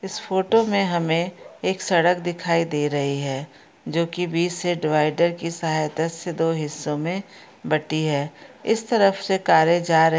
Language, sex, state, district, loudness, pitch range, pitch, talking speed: Hindi, female, Chhattisgarh, Bastar, -22 LUFS, 155-180 Hz, 170 Hz, 175 wpm